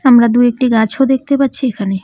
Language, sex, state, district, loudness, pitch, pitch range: Bengali, female, West Bengal, Cooch Behar, -13 LUFS, 245 Hz, 225-265 Hz